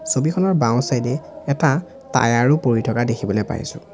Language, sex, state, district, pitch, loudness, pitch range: Assamese, male, Assam, Sonitpur, 130 Hz, -19 LUFS, 120-155 Hz